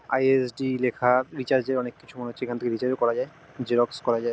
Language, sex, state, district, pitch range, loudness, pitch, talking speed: Bengali, male, West Bengal, North 24 Parganas, 120-130 Hz, -25 LUFS, 125 Hz, 275 wpm